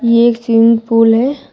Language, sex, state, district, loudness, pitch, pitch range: Hindi, female, Uttar Pradesh, Shamli, -11 LUFS, 230 Hz, 230-240 Hz